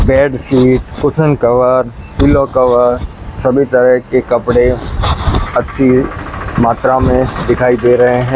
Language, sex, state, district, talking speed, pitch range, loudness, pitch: Hindi, male, Rajasthan, Bikaner, 120 wpm, 120-130 Hz, -12 LUFS, 125 Hz